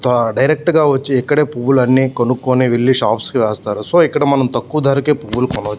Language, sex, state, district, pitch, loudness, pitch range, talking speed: Telugu, male, Andhra Pradesh, Visakhapatnam, 130 Hz, -14 LUFS, 120-145 Hz, 185 wpm